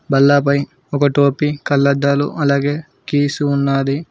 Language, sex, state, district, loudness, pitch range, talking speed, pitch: Telugu, male, Telangana, Mahabubabad, -16 LUFS, 140-145 Hz, 100 wpm, 140 Hz